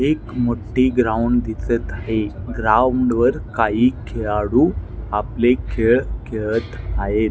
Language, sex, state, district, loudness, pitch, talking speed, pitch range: Marathi, male, Maharashtra, Nagpur, -19 LUFS, 110 Hz, 105 wpm, 105-120 Hz